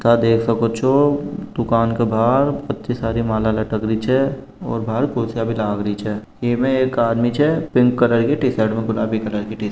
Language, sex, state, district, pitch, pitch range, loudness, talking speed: Marwari, male, Rajasthan, Nagaur, 115 Hz, 110-130 Hz, -19 LUFS, 205 wpm